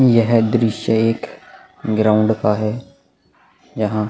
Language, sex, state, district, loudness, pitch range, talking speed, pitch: Hindi, male, Goa, North and South Goa, -17 LUFS, 110-115 Hz, 115 wpm, 110 Hz